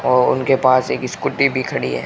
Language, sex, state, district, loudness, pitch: Hindi, male, Rajasthan, Bikaner, -17 LUFS, 130 Hz